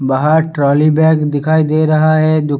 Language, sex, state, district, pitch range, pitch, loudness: Hindi, male, Bihar, Sitamarhi, 145-155 Hz, 155 Hz, -12 LUFS